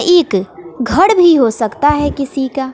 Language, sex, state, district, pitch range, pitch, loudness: Hindi, female, Bihar, West Champaran, 245-335 Hz, 275 Hz, -13 LUFS